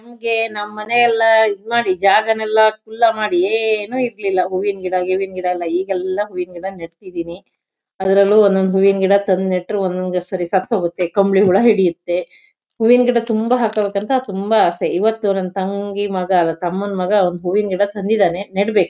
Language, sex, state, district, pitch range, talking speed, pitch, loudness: Kannada, female, Karnataka, Shimoga, 185-220 Hz, 135 wpm, 200 Hz, -17 LUFS